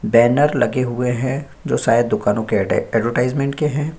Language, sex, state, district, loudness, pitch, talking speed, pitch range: Hindi, male, Chhattisgarh, Korba, -18 LUFS, 130 Hz, 165 wpm, 120-145 Hz